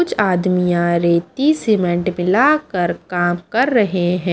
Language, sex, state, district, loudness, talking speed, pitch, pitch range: Hindi, female, Haryana, Charkhi Dadri, -17 LUFS, 125 wpm, 180 Hz, 175-215 Hz